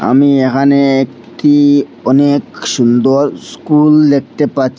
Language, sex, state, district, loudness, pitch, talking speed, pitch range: Bengali, male, Assam, Hailakandi, -11 LUFS, 140 Hz, 100 wpm, 130-145 Hz